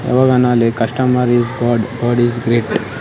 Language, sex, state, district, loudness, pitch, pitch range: Kannada, male, Karnataka, Raichur, -15 LUFS, 120 Hz, 120-125 Hz